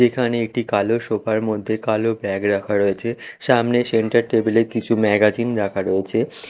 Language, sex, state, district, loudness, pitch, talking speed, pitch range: Bengali, male, Odisha, Khordha, -20 LUFS, 110 Hz, 155 wpm, 105-115 Hz